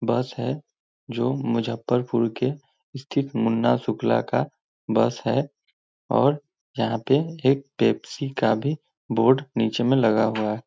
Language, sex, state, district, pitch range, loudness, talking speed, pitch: Hindi, male, Bihar, Muzaffarpur, 115-140 Hz, -24 LUFS, 135 wpm, 125 Hz